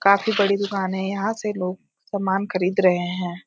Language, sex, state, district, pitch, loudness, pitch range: Hindi, female, Uttarakhand, Uttarkashi, 195 Hz, -22 LUFS, 185-200 Hz